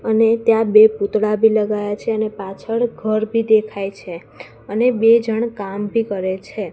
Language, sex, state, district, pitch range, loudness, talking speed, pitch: Gujarati, female, Gujarat, Gandhinagar, 200-225 Hz, -17 LUFS, 180 wpm, 215 Hz